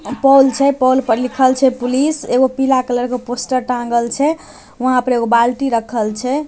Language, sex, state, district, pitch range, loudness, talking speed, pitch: Maithili, male, Bihar, Samastipur, 245-270 Hz, -15 LUFS, 185 wpm, 255 Hz